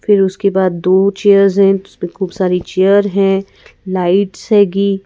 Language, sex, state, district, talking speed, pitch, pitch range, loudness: Hindi, female, Madhya Pradesh, Bhopal, 155 wpm, 195 Hz, 190-200 Hz, -13 LUFS